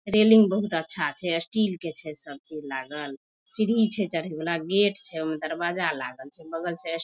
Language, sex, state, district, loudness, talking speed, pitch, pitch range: Maithili, female, Bihar, Madhepura, -26 LUFS, 215 wpm, 165 Hz, 155-200 Hz